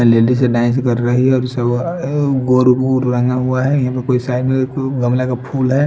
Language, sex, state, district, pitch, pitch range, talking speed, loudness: Hindi, male, Punjab, Fazilka, 125 Hz, 125-130 Hz, 70 wpm, -15 LUFS